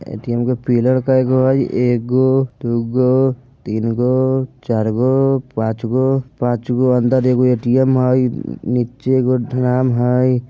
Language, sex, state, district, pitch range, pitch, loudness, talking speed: Bajjika, male, Bihar, Vaishali, 120-130 Hz, 125 Hz, -16 LUFS, 150 wpm